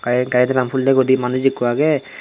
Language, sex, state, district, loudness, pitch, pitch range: Chakma, male, Tripura, Dhalai, -17 LUFS, 130 Hz, 125-135 Hz